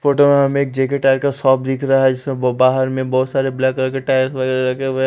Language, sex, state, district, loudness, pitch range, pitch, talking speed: Hindi, male, Punjab, Fazilka, -16 LUFS, 130-135 Hz, 130 Hz, 285 wpm